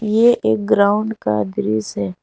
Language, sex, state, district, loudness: Hindi, female, Jharkhand, Garhwa, -17 LUFS